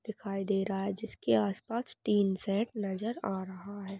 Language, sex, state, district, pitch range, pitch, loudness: Hindi, female, Jharkhand, Sahebganj, 195-210 Hz, 200 Hz, -33 LUFS